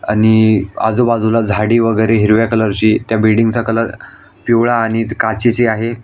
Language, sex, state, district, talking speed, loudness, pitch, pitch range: Marathi, male, Maharashtra, Aurangabad, 130 wpm, -13 LUFS, 110 Hz, 110-115 Hz